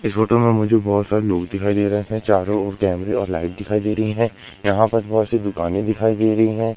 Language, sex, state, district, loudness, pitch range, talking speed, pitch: Hindi, male, Madhya Pradesh, Umaria, -19 LUFS, 100-110 Hz, 255 wpm, 105 Hz